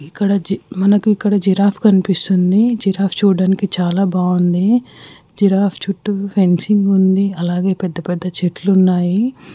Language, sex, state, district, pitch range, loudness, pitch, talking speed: Telugu, female, Andhra Pradesh, Guntur, 180-200 Hz, -15 LUFS, 195 Hz, 115 wpm